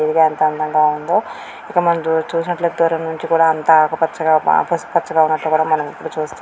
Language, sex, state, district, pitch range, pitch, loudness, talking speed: Telugu, female, Andhra Pradesh, Srikakulam, 155-165 Hz, 160 Hz, -16 LUFS, 170 wpm